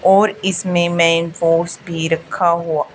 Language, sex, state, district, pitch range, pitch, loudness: Hindi, female, Haryana, Charkhi Dadri, 165-180 Hz, 170 Hz, -16 LUFS